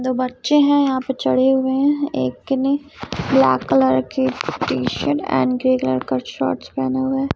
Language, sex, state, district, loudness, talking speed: Hindi, female, Chhattisgarh, Raipur, -19 LUFS, 185 wpm